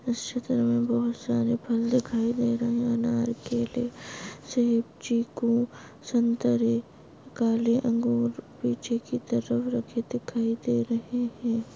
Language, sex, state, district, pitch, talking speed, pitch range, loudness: Hindi, female, Maharashtra, Solapur, 235 Hz, 130 wpm, 230-240 Hz, -27 LUFS